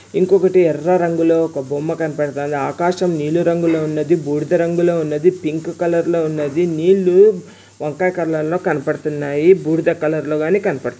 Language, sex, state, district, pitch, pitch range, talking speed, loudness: Telugu, male, Andhra Pradesh, Anantapur, 165 Hz, 155-175 Hz, 140 wpm, -17 LUFS